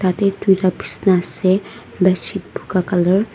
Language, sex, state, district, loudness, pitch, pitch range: Nagamese, female, Nagaland, Dimapur, -18 LUFS, 185 Hz, 185-195 Hz